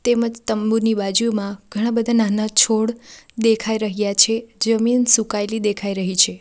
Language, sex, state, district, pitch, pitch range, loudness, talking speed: Gujarati, female, Gujarat, Valsad, 220 Hz, 205-230 Hz, -18 LUFS, 140 wpm